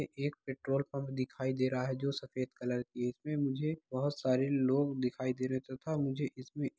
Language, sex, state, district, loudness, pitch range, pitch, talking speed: Hindi, male, Bihar, East Champaran, -36 LUFS, 130-140 Hz, 135 Hz, 230 wpm